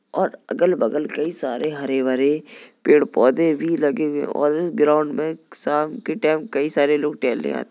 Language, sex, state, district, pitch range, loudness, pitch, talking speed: Hindi, female, Uttar Pradesh, Jalaun, 145-155 Hz, -20 LUFS, 150 Hz, 200 wpm